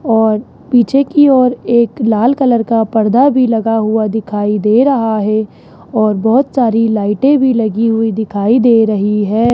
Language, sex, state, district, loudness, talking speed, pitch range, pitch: Hindi, male, Rajasthan, Jaipur, -12 LUFS, 170 wpm, 215-250 Hz, 225 Hz